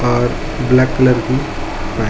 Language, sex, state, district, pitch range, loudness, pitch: Hindi, male, Uttar Pradesh, Ghazipur, 110-130 Hz, -16 LUFS, 120 Hz